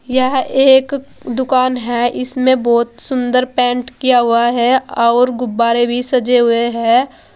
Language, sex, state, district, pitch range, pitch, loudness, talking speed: Hindi, female, Uttar Pradesh, Saharanpur, 240-260 Hz, 250 Hz, -14 LUFS, 140 wpm